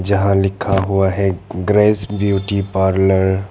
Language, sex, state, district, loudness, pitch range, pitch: Hindi, male, Arunachal Pradesh, Papum Pare, -16 LUFS, 95-100 Hz, 95 Hz